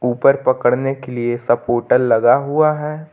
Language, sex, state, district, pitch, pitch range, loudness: Hindi, male, Uttar Pradesh, Lucknow, 130 Hz, 120-150 Hz, -16 LUFS